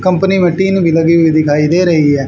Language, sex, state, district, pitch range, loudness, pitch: Hindi, male, Haryana, Charkhi Dadri, 155-185 Hz, -11 LUFS, 170 Hz